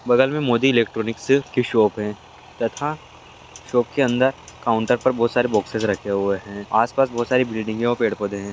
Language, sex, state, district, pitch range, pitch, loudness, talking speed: Hindi, male, Bihar, Lakhisarai, 105-125 Hz, 115 Hz, -21 LUFS, 185 wpm